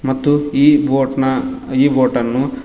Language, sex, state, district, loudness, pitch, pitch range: Kannada, male, Karnataka, Koppal, -15 LUFS, 135 Hz, 130-145 Hz